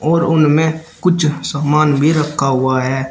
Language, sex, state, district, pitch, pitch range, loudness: Hindi, male, Uttar Pradesh, Shamli, 150 Hz, 140-160 Hz, -15 LUFS